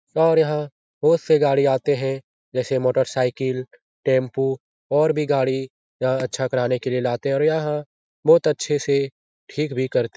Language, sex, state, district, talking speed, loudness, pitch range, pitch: Hindi, male, Bihar, Jahanabad, 175 wpm, -21 LUFS, 130-150 Hz, 135 Hz